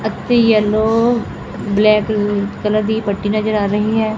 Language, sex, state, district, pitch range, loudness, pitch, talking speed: Punjabi, female, Punjab, Fazilka, 210-220 Hz, -16 LUFS, 215 Hz, 145 wpm